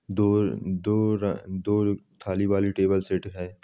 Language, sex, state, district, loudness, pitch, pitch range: Angika, male, Bihar, Samastipur, -26 LUFS, 100 Hz, 95-105 Hz